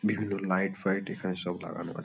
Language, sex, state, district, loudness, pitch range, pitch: Bengali, male, West Bengal, Kolkata, -32 LUFS, 95-100 Hz, 95 Hz